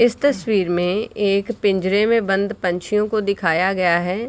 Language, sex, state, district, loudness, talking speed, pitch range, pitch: Hindi, female, Bihar, Sitamarhi, -19 LUFS, 170 wpm, 185-215 Hz, 200 Hz